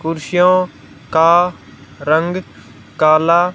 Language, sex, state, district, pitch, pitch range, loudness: Hindi, female, Haryana, Rohtak, 170 Hz, 160-180 Hz, -14 LUFS